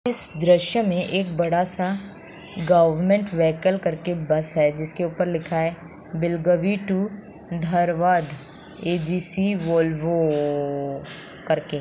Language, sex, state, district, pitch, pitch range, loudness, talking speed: Hindi, female, Bihar, Samastipur, 170 Hz, 160-180 Hz, -22 LUFS, 115 wpm